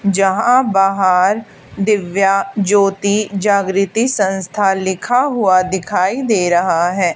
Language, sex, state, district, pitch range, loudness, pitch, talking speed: Hindi, female, Haryana, Charkhi Dadri, 190-210 Hz, -15 LUFS, 195 Hz, 100 wpm